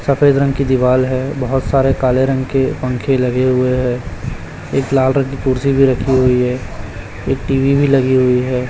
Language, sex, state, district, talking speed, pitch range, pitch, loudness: Hindi, male, Chhattisgarh, Raipur, 200 wpm, 125-135 Hz, 130 Hz, -15 LUFS